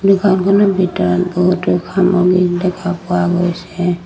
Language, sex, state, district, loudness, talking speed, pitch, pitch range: Assamese, female, Assam, Sonitpur, -14 LUFS, 105 wpm, 180 Hz, 175-185 Hz